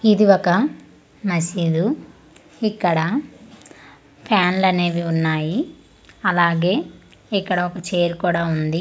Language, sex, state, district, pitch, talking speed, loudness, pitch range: Telugu, female, Andhra Pradesh, Manyam, 180 Hz, 80 wpm, -20 LUFS, 170-210 Hz